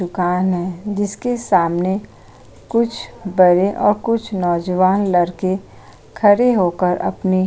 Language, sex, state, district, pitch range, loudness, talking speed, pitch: Hindi, female, Uttar Pradesh, Jyotiba Phule Nagar, 180-205 Hz, -17 LUFS, 120 wpm, 185 Hz